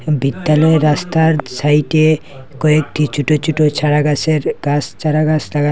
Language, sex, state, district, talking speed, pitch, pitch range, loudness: Bengali, male, Assam, Hailakandi, 105 wpm, 150 Hz, 145-155 Hz, -14 LUFS